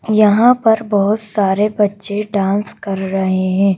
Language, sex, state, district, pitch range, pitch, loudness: Hindi, female, Madhya Pradesh, Bhopal, 195-215 Hz, 205 Hz, -15 LUFS